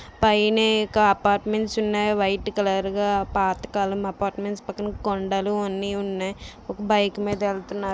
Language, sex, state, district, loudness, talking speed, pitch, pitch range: Telugu, female, Andhra Pradesh, Visakhapatnam, -23 LUFS, 135 wpm, 200 Hz, 195-210 Hz